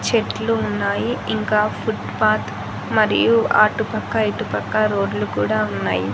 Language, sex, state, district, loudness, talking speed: Telugu, female, Andhra Pradesh, Annamaya, -20 LUFS, 125 wpm